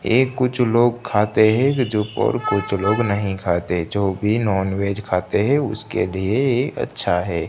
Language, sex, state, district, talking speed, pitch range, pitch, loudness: Hindi, male, Gujarat, Gandhinagar, 170 wpm, 95-120 Hz, 105 Hz, -20 LUFS